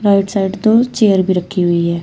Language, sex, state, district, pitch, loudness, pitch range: Hindi, female, Uttar Pradesh, Shamli, 195 Hz, -14 LUFS, 180-205 Hz